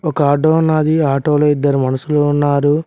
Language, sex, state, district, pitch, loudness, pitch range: Telugu, male, Telangana, Mahabubabad, 145 Hz, -14 LUFS, 145-155 Hz